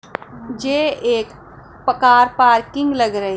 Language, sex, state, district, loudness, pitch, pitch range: Hindi, female, Punjab, Pathankot, -16 LUFS, 255 Hz, 235-285 Hz